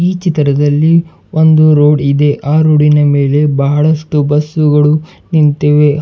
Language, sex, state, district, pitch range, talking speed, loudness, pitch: Kannada, male, Karnataka, Bidar, 145-155 Hz, 150 wpm, -10 LUFS, 150 Hz